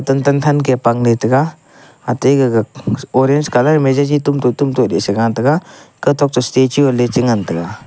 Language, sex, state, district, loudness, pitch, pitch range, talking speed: Wancho, male, Arunachal Pradesh, Longding, -14 LUFS, 130 Hz, 120-140 Hz, 185 wpm